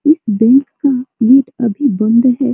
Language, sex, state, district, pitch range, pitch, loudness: Hindi, female, Bihar, Supaul, 230-275 Hz, 255 Hz, -12 LUFS